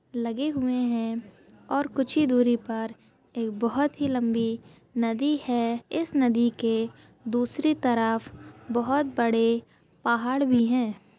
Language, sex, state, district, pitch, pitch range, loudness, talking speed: Hindi, female, Maharashtra, Sindhudurg, 240 Hz, 230-270 Hz, -26 LUFS, 130 wpm